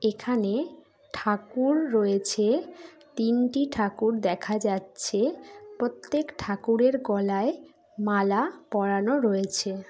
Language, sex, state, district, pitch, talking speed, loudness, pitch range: Bengali, female, West Bengal, Jhargram, 225 Hz, 80 wpm, -26 LUFS, 205-285 Hz